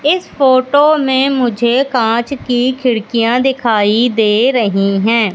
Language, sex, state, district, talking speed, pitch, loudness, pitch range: Hindi, female, Madhya Pradesh, Katni, 125 wpm, 245 Hz, -13 LUFS, 225-265 Hz